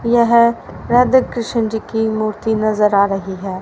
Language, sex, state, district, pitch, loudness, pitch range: Hindi, female, Haryana, Rohtak, 220 Hz, -16 LUFS, 210-235 Hz